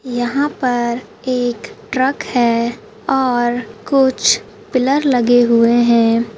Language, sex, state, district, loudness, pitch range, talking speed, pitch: Hindi, female, Rajasthan, Churu, -16 LUFS, 235-260 Hz, 105 wpm, 245 Hz